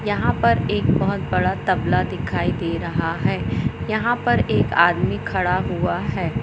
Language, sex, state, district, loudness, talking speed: Hindi, female, Madhya Pradesh, Katni, -21 LUFS, 160 wpm